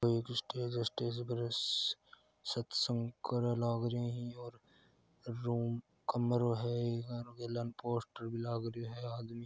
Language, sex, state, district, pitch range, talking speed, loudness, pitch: Hindi, male, Rajasthan, Churu, 115-120 Hz, 125 wpm, -38 LUFS, 120 Hz